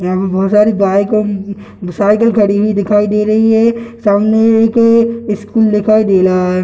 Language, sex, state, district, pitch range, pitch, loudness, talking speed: Hindi, male, Bihar, Gaya, 200-225 Hz, 210 Hz, -11 LUFS, 190 wpm